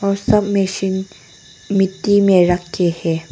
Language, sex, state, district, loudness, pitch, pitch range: Hindi, female, Arunachal Pradesh, Longding, -16 LUFS, 190 Hz, 175-200 Hz